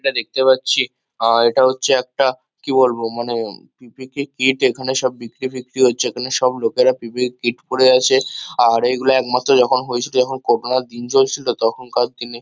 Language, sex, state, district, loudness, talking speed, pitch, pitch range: Bengali, male, West Bengal, Kolkata, -17 LUFS, 170 wpm, 130 Hz, 120-130 Hz